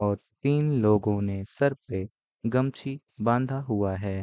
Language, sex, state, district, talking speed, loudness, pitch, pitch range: Hindi, male, Bihar, Gopalganj, 140 wpm, -27 LUFS, 110 Hz, 100-135 Hz